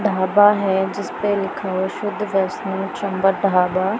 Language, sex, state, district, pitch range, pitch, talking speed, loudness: Hindi, female, Punjab, Pathankot, 190-205 Hz, 195 Hz, 135 wpm, -19 LUFS